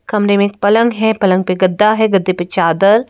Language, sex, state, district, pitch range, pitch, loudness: Hindi, female, Madhya Pradesh, Bhopal, 185-220 Hz, 200 Hz, -13 LUFS